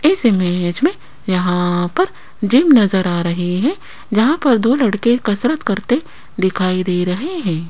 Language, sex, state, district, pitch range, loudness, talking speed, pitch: Hindi, female, Rajasthan, Jaipur, 180-255 Hz, -16 LUFS, 155 wpm, 210 Hz